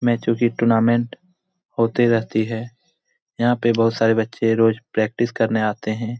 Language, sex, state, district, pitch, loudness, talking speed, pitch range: Hindi, male, Bihar, Jamui, 115 Hz, -20 LUFS, 165 wpm, 115-120 Hz